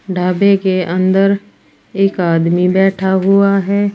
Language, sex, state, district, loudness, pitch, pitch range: Hindi, female, Uttar Pradesh, Saharanpur, -13 LUFS, 190 Hz, 185-195 Hz